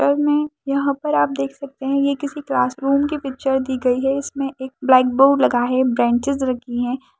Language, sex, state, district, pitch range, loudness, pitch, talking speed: Hindi, female, Chhattisgarh, Kabirdham, 250-280 Hz, -19 LUFS, 270 Hz, 235 wpm